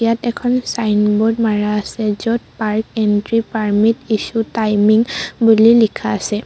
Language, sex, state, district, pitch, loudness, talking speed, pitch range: Assamese, female, Assam, Sonitpur, 220 Hz, -16 LUFS, 130 wpm, 210-230 Hz